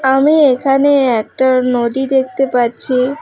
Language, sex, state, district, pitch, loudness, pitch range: Bengali, female, West Bengal, Alipurduar, 265 Hz, -13 LUFS, 250-270 Hz